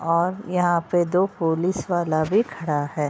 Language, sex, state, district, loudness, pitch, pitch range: Hindi, female, Uttar Pradesh, Budaun, -22 LUFS, 175 Hz, 160-180 Hz